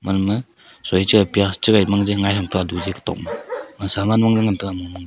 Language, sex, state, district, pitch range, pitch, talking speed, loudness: Wancho, male, Arunachal Pradesh, Longding, 95-105 Hz, 100 Hz, 105 wpm, -19 LUFS